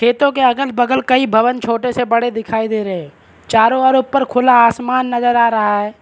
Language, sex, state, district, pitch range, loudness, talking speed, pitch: Hindi, male, Maharashtra, Chandrapur, 225-255 Hz, -14 LUFS, 220 wpm, 240 Hz